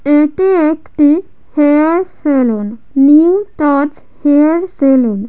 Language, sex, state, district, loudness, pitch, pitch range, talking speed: Bengali, female, West Bengal, Jhargram, -12 LUFS, 295 Hz, 280-325 Hz, 100 wpm